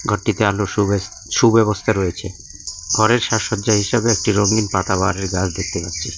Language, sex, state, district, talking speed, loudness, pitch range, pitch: Bengali, male, West Bengal, Cooch Behar, 135 wpm, -18 LUFS, 95-110 Hz, 105 Hz